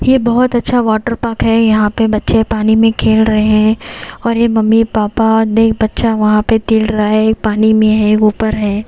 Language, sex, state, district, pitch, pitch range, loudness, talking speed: Hindi, female, Haryana, Jhajjar, 220 Hz, 215-225 Hz, -12 LUFS, 205 wpm